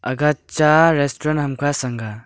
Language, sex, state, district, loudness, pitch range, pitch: Wancho, male, Arunachal Pradesh, Longding, -18 LUFS, 130-150 Hz, 145 Hz